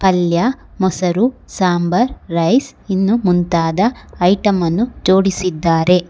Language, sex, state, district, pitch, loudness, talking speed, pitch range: Kannada, female, Karnataka, Bangalore, 185 Hz, -16 LUFS, 90 wpm, 175-205 Hz